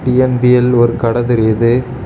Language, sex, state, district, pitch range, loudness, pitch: Tamil, male, Tamil Nadu, Kanyakumari, 115-125 Hz, -12 LUFS, 120 Hz